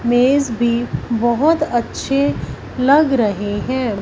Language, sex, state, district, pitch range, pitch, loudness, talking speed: Hindi, female, Punjab, Fazilka, 205-260 Hz, 235 Hz, -17 LUFS, 105 wpm